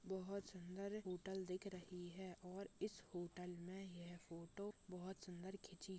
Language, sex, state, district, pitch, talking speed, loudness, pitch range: Hindi, male, Chhattisgarh, Rajnandgaon, 185 Hz, 150 wpm, -52 LUFS, 180-195 Hz